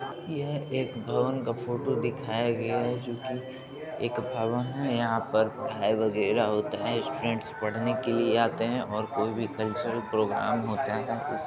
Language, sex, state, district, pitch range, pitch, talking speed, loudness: Hindi, male, Bihar, Begusarai, 110-130 Hz, 120 Hz, 180 wpm, -29 LUFS